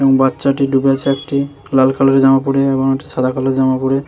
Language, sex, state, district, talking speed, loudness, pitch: Bengali, male, West Bengal, Jalpaiguri, 190 wpm, -14 LUFS, 135 Hz